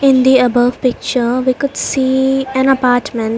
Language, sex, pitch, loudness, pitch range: English, female, 255 Hz, -13 LUFS, 245-265 Hz